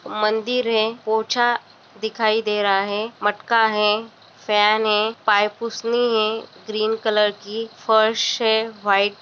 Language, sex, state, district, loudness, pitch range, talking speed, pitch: Hindi, female, Bihar, Darbhanga, -20 LUFS, 210-225 Hz, 135 wpm, 220 Hz